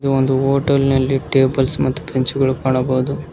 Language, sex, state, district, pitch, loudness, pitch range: Kannada, male, Karnataka, Koppal, 135 Hz, -17 LUFS, 130-135 Hz